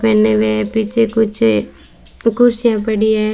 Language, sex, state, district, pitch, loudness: Hindi, female, Rajasthan, Bikaner, 215 Hz, -15 LUFS